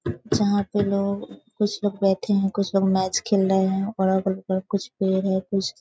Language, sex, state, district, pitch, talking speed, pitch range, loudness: Hindi, female, Bihar, Sitamarhi, 195 Hz, 205 wpm, 190-205 Hz, -23 LUFS